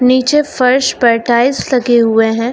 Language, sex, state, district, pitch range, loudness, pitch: Hindi, female, Uttar Pradesh, Lucknow, 235-255 Hz, -12 LUFS, 250 Hz